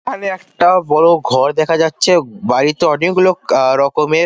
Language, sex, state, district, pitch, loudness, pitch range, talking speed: Bengali, male, West Bengal, Paschim Medinipur, 170 Hz, -13 LUFS, 150-185 Hz, 170 wpm